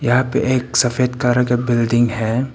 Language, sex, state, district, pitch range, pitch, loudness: Hindi, male, Arunachal Pradesh, Papum Pare, 120-125 Hz, 125 Hz, -17 LUFS